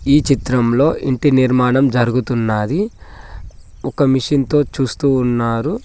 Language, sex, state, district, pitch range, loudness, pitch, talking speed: Telugu, male, Telangana, Mahabubabad, 115-140 Hz, -16 LUFS, 130 Hz, 105 wpm